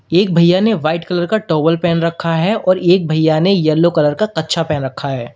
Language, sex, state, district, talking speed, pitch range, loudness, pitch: Hindi, male, Uttar Pradesh, Lalitpur, 235 wpm, 155-185 Hz, -14 LUFS, 165 Hz